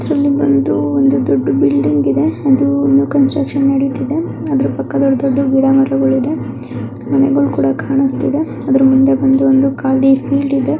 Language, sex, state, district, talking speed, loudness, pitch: Kannada, female, Karnataka, Raichur, 135 wpm, -13 LUFS, 265 Hz